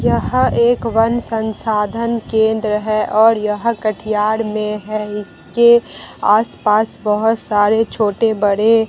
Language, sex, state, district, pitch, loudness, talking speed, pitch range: Hindi, female, Bihar, Katihar, 220 Hz, -16 LUFS, 120 wpm, 210-225 Hz